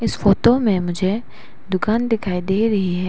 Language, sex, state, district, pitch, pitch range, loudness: Hindi, female, Arunachal Pradesh, Lower Dibang Valley, 200 Hz, 185-225 Hz, -19 LUFS